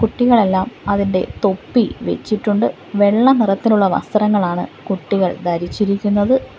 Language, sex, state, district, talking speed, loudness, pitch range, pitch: Malayalam, female, Kerala, Kollam, 80 wpm, -17 LUFS, 195-220 Hz, 205 Hz